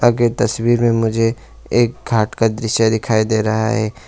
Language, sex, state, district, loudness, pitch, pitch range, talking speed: Hindi, male, West Bengal, Alipurduar, -17 LUFS, 115 Hz, 110-120 Hz, 175 wpm